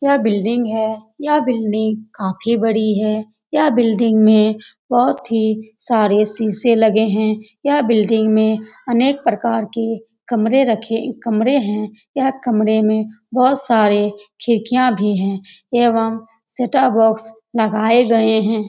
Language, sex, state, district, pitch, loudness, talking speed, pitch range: Hindi, female, Bihar, Lakhisarai, 225 Hz, -16 LUFS, 130 wpm, 215-240 Hz